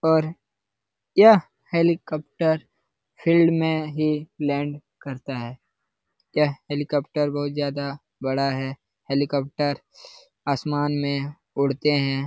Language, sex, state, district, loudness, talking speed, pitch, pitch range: Hindi, male, Bihar, Lakhisarai, -23 LUFS, 100 wpm, 145 Hz, 140-155 Hz